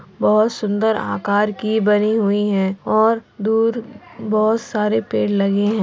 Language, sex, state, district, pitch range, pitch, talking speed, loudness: Hindi, female, Uttar Pradesh, Varanasi, 205-220 Hz, 215 Hz, 155 wpm, -18 LUFS